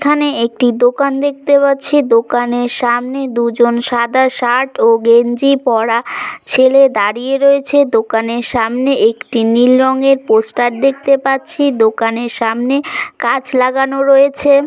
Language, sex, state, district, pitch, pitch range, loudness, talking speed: Bengali, female, West Bengal, Kolkata, 255 Hz, 235-275 Hz, -13 LUFS, 120 wpm